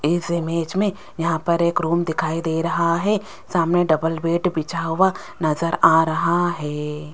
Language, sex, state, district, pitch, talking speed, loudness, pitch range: Hindi, female, Rajasthan, Jaipur, 170 Hz, 170 wpm, -21 LUFS, 160-175 Hz